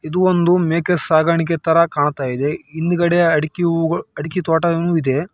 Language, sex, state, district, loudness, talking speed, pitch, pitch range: Kannada, male, Karnataka, Raichur, -17 LUFS, 135 wpm, 165 Hz, 155-170 Hz